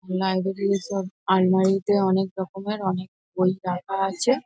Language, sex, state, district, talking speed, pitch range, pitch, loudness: Bengali, female, West Bengal, North 24 Parganas, 135 wpm, 185-195 Hz, 190 Hz, -24 LUFS